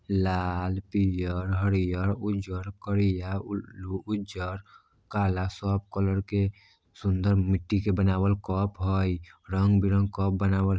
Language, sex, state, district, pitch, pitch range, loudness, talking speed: Maithili, male, Bihar, Vaishali, 95 Hz, 95-100 Hz, -28 LUFS, 110 wpm